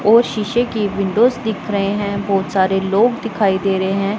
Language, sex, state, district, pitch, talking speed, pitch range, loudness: Hindi, female, Punjab, Pathankot, 205 Hz, 200 wpm, 195-225 Hz, -17 LUFS